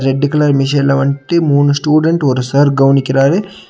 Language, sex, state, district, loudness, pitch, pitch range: Tamil, male, Tamil Nadu, Nilgiris, -12 LUFS, 140 Hz, 135-150 Hz